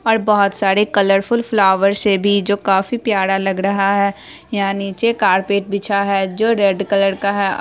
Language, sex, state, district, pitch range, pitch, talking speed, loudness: Hindi, female, Bihar, Araria, 195-205 Hz, 200 Hz, 205 wpm, -16 LUFS